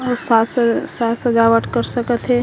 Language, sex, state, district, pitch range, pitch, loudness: Chhattisgarhi, female, Chhattisgarh, Korba, 230-245 Hz, 240 Hz, -17 LUFS